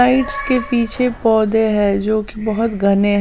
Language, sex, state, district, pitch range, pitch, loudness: Hindi, female, Punjab, Pathankot, 210-245 Hz, 220 Hz, -16 LUFS